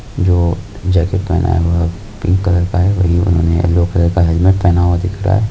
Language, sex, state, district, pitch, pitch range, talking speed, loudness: Hindi, male, Rajasthan, Nagaur, 90 Hz, 85-95 Hz, 205 wpm, -14 LUFS